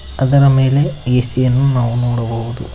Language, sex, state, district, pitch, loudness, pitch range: Kannada, male, Karnataka, Koppal, 125 Hz, -15 LUFS, 120-135 Hz